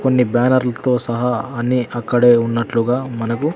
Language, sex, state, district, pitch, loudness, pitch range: Telugu, male, Andhra Pradesh, Sri Satya Sai, 120 Hz, -17 LUFS, 115-125 Hz